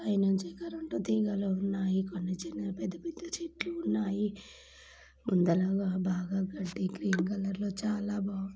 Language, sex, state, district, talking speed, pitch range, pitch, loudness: Telugu, female, Andhra Pradesh, Guntur, 135 wpm, 185-205 Hz, 195 Hz, -33 LUFS